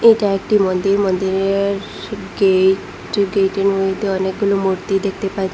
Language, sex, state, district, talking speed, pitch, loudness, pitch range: Bengali, female, Assam, Hailakandi, 120 wpm, 195 Hz, -17 LUFS, 190-200 Hz